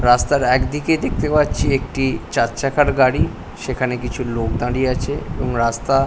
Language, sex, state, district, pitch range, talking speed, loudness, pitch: Bengali, male, West Bengal, Paschim Medinipur, 120-140 Hz, 160 wpm, -19 LUFS, 130 Hz